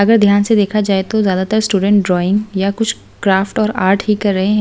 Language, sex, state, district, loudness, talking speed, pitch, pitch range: Hindi, female, Delhi, New Delhi, -14 LUFS, 235 wpm, 205 Hz, 195-215 Hz